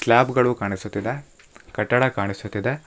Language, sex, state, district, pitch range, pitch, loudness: Kannada, male, Karnataka, Bangalore, 100-125 Hz, 115 Hz, -22 LUFS